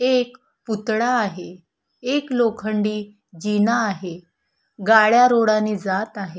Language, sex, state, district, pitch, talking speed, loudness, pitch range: Marathi, female, Maharashtra, Chandrapur, 215 Hz, 105 wpm, -20 LUFS, 200-240 Hz